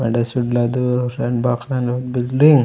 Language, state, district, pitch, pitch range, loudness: Gondi, Chhattisgarh, Sukma, 125 Hz, 120-125 Hz, -19 LUFS